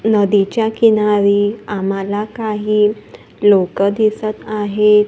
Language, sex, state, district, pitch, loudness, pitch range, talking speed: Marathi, female, Maharashtra, Gondia, 210 Hz, -15 LUFS, 205-215 Hz, 85 wpm